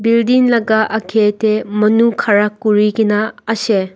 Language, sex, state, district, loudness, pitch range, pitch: Nagamese, female, Nagaland, Dimapur, -14 LUFS, 210-225 Hz, 220 Hz